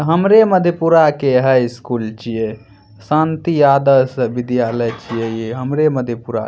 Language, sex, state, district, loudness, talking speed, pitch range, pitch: Maithili, male, Bihar, Madhepura, -15 LUFS, 130 wpm, 115-150 Hz, 125 Hz